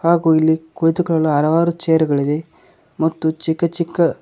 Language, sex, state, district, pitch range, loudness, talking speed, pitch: Kannada, male, Karnataka, Koppal, 160-170 Hz, -17 LUFS, 115 wpm, 160 Hz